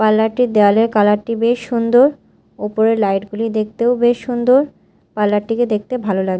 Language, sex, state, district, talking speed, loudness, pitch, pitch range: Bengali, female, Odisha, Malkangiri, 170 wpm, -16 LUFS, 225 Hz, 210-240 Hz